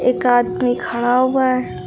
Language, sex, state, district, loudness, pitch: Hindi, female, Uttar Pradesh, Lucknow, -17 LUFS, 235 Hz